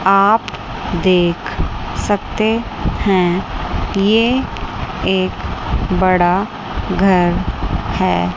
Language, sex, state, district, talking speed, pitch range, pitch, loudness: Hindi, female, Chandigarh, Chandigarh, 65 wpm, 175-200 Hz, 185 Hz, -17 LUFS